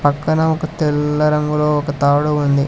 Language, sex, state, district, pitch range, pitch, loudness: Telugu, male, Telangana, Hyderabad, 145-150 Hz, 150 Hz, -16 LUFS